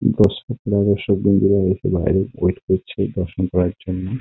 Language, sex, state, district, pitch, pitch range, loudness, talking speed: Bengali, male, West Bengal, Kolkata, 95 Hz, 95-100 Hz, -19 LUFS, 170 wpm